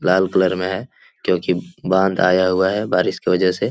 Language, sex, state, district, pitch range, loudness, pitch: Hindi, male, Bihar, Jahanabad, 90-95 Hz, -18 LUFS, 95 Hz